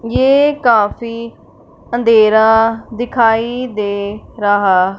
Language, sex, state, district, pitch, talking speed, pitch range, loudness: Hindi, female, Punjab, Fazilka, 225 Hz, 70 wpm, 210-240 Hz, -13 LUFS